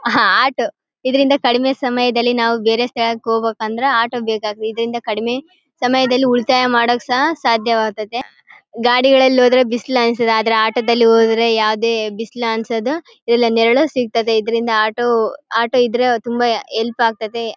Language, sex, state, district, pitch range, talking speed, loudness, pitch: Kannada, female, Karnataka, Bellary, 225-250 Hz, 135 wpm, -16 LUFS, 235 Hz